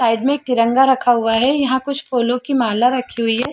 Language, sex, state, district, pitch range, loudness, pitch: Hindi, female, Chhattisgarh, Bilaspur, 235-265 Hz, -17 LUFS, 250 Hz